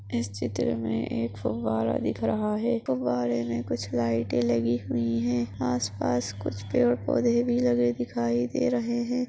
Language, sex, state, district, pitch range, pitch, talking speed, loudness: Hindi, female, Maharashtra, Aurangabad, 115-125 Hz, 120 Hz, 175 wpm, -27 LUFS